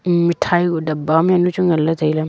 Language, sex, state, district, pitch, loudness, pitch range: Wancho, female, Arunachal Pradesh, Longding, 170 Hz, -17 LUFS, 155-175 Hz